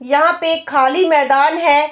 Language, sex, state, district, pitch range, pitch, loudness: Hindi, female, Bihar, Bhagalpur, 285-325 Hz, 295 Hz, -14 LUFS